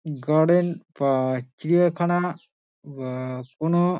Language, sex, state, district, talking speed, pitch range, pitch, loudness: Bengali, male, West Bengal, Dakshin Dinajpur, 90 wpm, 130-175 Hz, 155 Hz, -23 LUFS